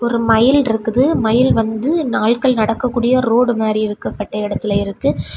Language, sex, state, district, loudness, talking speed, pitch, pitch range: Tamil, female, Tamil Nadu, Kanyakumari, -16 LUFS, 135 wpm, 230 Hz, 215-250 Hz